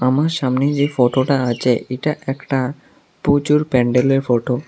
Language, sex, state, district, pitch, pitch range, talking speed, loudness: Bengali, male, Tripura, South Tripura, 130 Hz, 125-145 Hz, 140 wpm, -18 LUFS